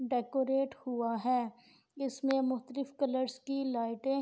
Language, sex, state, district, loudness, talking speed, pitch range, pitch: Urdu, female, Andhra Pradesh, Anantapur, -34 LUFS, 130 wpm, 245-270 Hz, 260 Hz